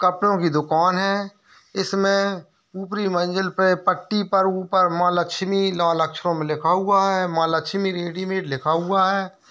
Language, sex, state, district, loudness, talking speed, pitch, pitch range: Hindi, male, Bihar, Lakhisarai, -21 LUFS, 160 wpm, 185 Hz, 175-195 Hz